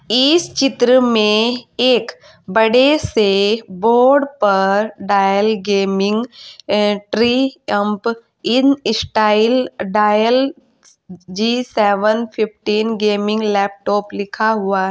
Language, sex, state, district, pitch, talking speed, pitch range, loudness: Hindi, female, Uttar Pradesh, Saharanpur, 220 Hz, 80 wpm, 205-245 Hz, -15 LUFS